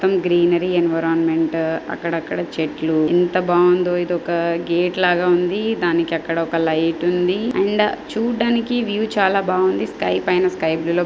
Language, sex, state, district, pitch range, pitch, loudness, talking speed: Telugu, female, Andhra Pradesh, Srikakulam, 165-185 Hz, 175 Hz, -19 LUFS, 145 wpm